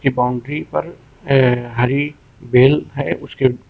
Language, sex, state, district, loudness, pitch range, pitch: Hindi, male, Uttar Pradesh, Lucknow, -17 LUFS, 125-140 Hz, 130 Hz